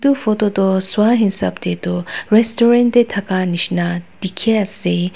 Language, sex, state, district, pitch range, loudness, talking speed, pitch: Nagamese, female, Nagaland, Dimapur, 180-220 Hz, -15 LUFS, 150 wpm, 195 Hz